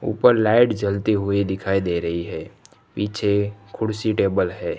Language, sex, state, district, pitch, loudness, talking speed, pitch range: Hindi, male, Gujarat, Gandhinagar, 100 Hz, -21 LUFS, 150 wpm, 95-110 Hz